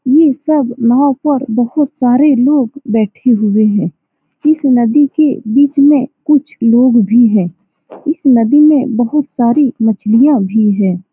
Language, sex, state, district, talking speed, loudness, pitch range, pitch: Hindi, female, Bihar, Saran, 150 wpm, -11 LUFS, 225-290 Hz, 255 Hz